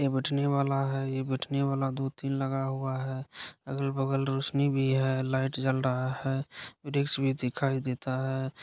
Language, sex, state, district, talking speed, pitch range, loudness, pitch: Maithili, male, Bihar, Supaul, 180 wpm, 130-135 Hz, -30 LUFS, 135 Hz